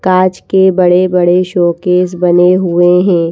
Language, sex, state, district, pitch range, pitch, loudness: Hindi, female, Madhya Pradesh, Bhopal, 175-185 Hz, 180 Hz, -10 LUFS